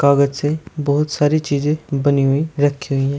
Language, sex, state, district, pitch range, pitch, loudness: Hindi, male, Uttar Pradesh, Shamli, 140-150 Hz, 145 Hz, -18 LUFS